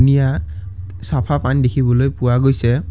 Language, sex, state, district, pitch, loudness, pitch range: Assamese, male, Assam, Kamrup Metropolitan, 125 Hz, -17 LUFS, 100-135 Hz